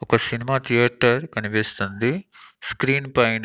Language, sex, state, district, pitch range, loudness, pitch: Telugu, male, Andhra Pradesh, Annamaya, 115-135 Hz, -20 LUFS, 120 Hz